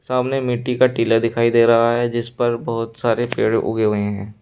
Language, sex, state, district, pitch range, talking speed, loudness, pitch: Hindi, male, Uttar Pradesh, Shamli, 115-120 Hz, 220 wpm, -18 LUFS, 115 Hz